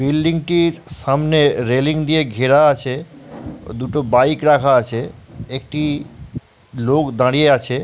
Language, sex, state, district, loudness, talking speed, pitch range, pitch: Bengali, male, West Bengal, Purulia, -16 LUFS, 120 wpm, 125-150 Hz, 140 Hz